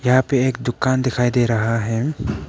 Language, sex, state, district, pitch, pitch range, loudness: Hindi, male, Arunachal Pradesh, Papum Pare, 125 Hz, 115-130 Hz, -19 LUFS